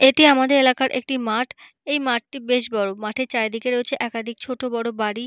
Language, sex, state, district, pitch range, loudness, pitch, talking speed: Bengali, female, West Bengal, Paschim Medinipur, 230-265 Hz, -21 LUFS, 250 Hz, 180 wpm